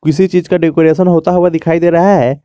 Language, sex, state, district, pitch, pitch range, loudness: Hindi, male, Jharkhand, Garhwa, 170 Hz, 160-180 Hz, -10 LUFS